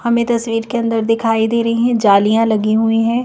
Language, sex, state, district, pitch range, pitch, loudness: Hindi, female, Madhya Pradesh, Bhopal, 225-235 Hz, 225 Hz, -15 LUFS